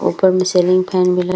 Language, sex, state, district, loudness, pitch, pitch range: Hindi, female, Bihar, Vaishali, -15 LUFS, 185 Hz, 180-185 Hz